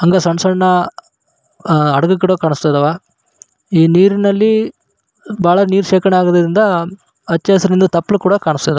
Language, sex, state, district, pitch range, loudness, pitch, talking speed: Kannada, male, Karnataka, Raichur, 170-195 Hz, -13 LUFS, 185 Hz, 115 wpm